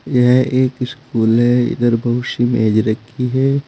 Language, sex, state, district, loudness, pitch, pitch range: Hindi, male, Uttar Pradesh, Saharanpur, -16 LUFS, 125 Hz, 115-130 Hz